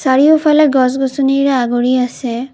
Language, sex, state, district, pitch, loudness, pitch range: Assamese, female, Assam, Kamrup Metropolitan, 265 Hz, -13 LUFS, 250-280 Hz